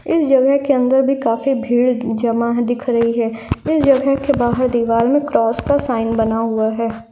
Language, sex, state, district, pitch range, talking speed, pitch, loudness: Hindi, female, Bihar, Lakhisarai, 230-275 Hz, 200 wpm, 240 Hz, -16 LUFS